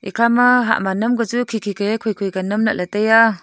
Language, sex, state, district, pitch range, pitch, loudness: Wancho, female, Arunachal Pradesh, Longding, 200-235 Hz, 220 Hz, -17 LUFS